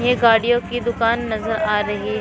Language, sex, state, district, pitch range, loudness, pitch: Hindi, female, Uttar Pradesh, Shamli, 215-240 Hz, -19 LUFS, 230 Hz